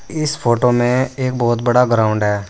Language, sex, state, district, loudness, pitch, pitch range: Hindi, male, Uttar Pradesh, Saharanpur, -16 LUFS, 120 Hz, 115-130 Hz